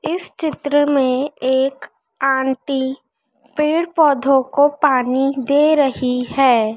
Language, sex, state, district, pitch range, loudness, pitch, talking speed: Hindi, female, Madhya Pradesh, Dhar, 265-290 Hz, -17 LUFS, 275 Hz, 105 wpm